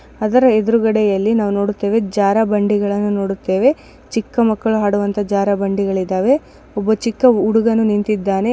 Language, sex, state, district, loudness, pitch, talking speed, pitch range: Kannada, female, Karnataka, Dakshina Kannada, -16 LUFS, 210 Hz, 105 wpm, 200-225 Hz